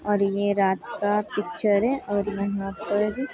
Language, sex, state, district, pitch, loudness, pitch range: Hindi, female, Bihar, Muzaffarpur, 205 Hz, -25 LUFS, 200-215 Hz